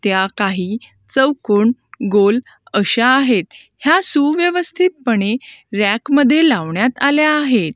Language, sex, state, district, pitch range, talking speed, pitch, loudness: Marathi, female, Maharashtra, Gondia, 205-290 Hz, 110 wpm, 250 Hz, -15 LUFS